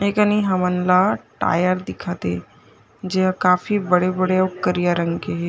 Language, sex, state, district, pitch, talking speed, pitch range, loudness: Chhattisgarhi, female, Chhattisgarh, Jashpur, 185 Hz, 175 wpm, 180-185 Hz, -20 LUFS